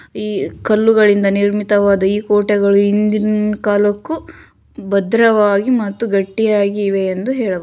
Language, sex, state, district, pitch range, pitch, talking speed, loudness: Kannada, female, Karnataka, Shimoga, 200-215 Hz, 205 Hz, 95 wpm, -15 LUFS